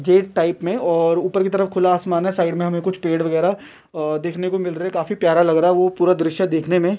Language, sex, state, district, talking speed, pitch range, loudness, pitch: Bhojpuri, male, Bihar, Saran, 285 wpm, 170-185 Hz, -19 LUFS, 175 Hz